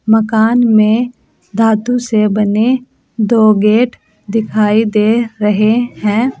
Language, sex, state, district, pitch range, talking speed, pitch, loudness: Hindi, female, Uttar Pradesh, Saharanpur, 215-235 Hz, 105 wpm, 220 Hz, -12 LUFS